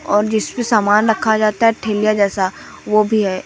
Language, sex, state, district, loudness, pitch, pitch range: Hindi, male, Uttar Pradesh, Lucknow, -16 LUFS, 215 Hz, 205-220 Hz